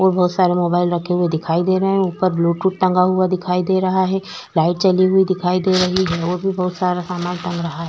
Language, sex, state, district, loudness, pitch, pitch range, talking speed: Hindi, female, Uttarakhand, Tehri Garhwal, -18 LUFS, 180 Hz, 175-185 Hz, 250 wpm